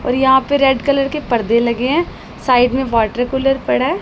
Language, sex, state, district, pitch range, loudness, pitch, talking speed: Hindi, female, Punjab, Pathankot, 245-275 Hz, -15 LUFS, 265 Hz, 225 wpm